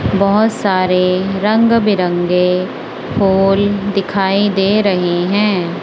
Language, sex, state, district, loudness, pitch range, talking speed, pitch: Hindi, female, Punjab, Kapurthala, -14 LUFS, 185-205 Hz, 95 wpm, 195 Hz